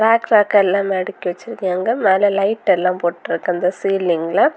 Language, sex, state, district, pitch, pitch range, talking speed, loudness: Tamil, female, Tamil Nadu, Kanyakumari, 195 Hz, 180-210 Hz, 170 wpm, -17 LUFS